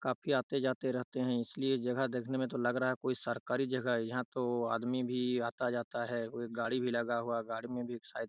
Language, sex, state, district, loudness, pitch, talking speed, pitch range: Hindi, male, Chhattisgarh, Raigarh, -35 LUFS, 125 Hz, 240 wpm, 120-130 Hz